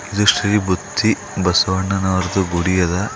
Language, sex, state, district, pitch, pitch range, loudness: Kannada, male, Karnataka, Bidar, 95 Hz, 90-100 Hz, -17 LUFS